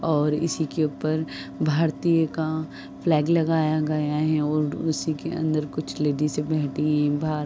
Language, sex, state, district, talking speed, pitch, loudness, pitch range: Hindi, female, Uttar Pradesh, Deoria, 145 wpm, 155 Hz, -24 LUFS, 150-160 Hz